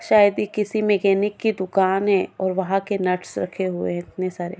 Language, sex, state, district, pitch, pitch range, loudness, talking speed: Hindi, female, Goa, North and South Goa, 195 Hz, 185-205 Hz, -22 LUFS, 210 wpm